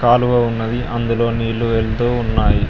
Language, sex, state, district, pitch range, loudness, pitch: Telugu, male, Telangana, Mahabubabad, 115-120 Hz, -17 LUFS, 115 Hz